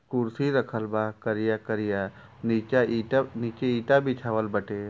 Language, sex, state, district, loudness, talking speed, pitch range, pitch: Bhojpuri, male, Uttar Pradesh, Ghazipur, -27 LUFS, 135 wpm, 110-125 Hz, 115 Hz